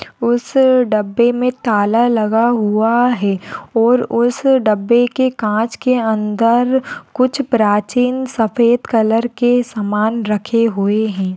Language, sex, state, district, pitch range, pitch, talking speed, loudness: Hindi, female, Maharashtra, Solapur, 215-245 Hz, 235 Hz, 120 wpm, -15 LUFS